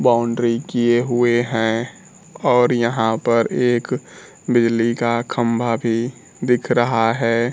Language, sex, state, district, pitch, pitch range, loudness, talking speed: Hindi, male, Bihar, Kaimur, 120 Hz, 115-120 Hz, -19 LUFS, 120 wpm